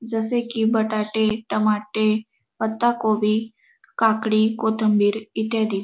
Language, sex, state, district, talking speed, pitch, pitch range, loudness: Marathi, female, Maharashtra, Dhule, 90 wpm, 220 Hz, 215-225 Hz, -22 LUFS